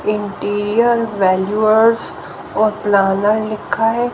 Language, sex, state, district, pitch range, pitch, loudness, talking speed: Hindi, female, Haryana, Jhajjar, 205-225 Hz, 215 Hz, -16 LUFS, 75 wpm